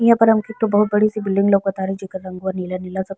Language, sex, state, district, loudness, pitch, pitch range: Bhojpuri, female, Bihar, East Champaran, -19 LUFS, 195 Hz, 190-215 Hz